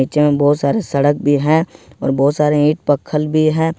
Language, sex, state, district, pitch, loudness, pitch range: Hindi, male, Jharkhand, Ranchi, 150 Hz, -15 LUFS, 145-155 Hz